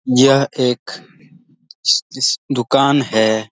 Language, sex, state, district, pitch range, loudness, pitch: Hindi, male, Bihar, Saran, 120-135 Hz, -16 LUFS, 130 Hz